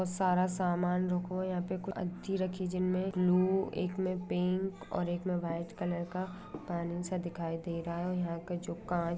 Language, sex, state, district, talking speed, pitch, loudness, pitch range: Hindi, female, Jharkhand, Sahebganj, 190 wpm, 180 Hz, -34 LUFS, 175-185 Hz